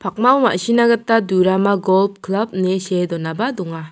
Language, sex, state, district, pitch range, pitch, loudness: Garo, female, Meghalaya, South Garo Hills, 185-225 Hz, 190 Hz, -17 LUFS